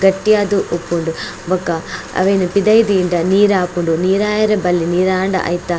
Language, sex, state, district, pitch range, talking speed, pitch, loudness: Tulu, female, Karnataka, Dakshina Kannada, 175-200 Hz, 115 wpm, 185 Hz, -15 LUFS